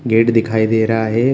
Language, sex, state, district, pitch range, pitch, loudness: Hindi, male, Bihar, Jamui, 110-115 Hz, 115 Hz, -15 LUFS